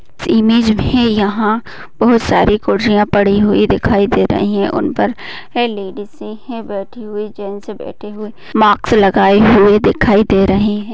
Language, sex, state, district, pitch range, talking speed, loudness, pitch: Hindi, female, Uttar Pradesh, Deoria, 200-220 Hz, 155 wpm, -13 LUFS, 210 Hz